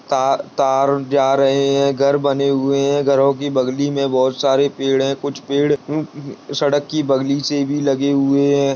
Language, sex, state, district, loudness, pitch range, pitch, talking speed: Hindi, male, Bihar, Jahanabad, -17 LUFS, 135-140 Hz, 140 Hz, 185 wpm